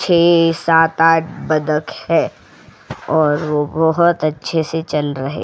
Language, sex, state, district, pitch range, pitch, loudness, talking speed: Hindi, female, Goa, North and South Goa, 150-165 Hz, 160 Hz, -16 LUFS, 145 wpm